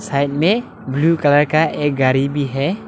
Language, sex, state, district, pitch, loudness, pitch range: Hindi, male, Arunachal Pradesh, Lower Dibang Valley, 145 Hz, -17 LUFS, 140-165 Hz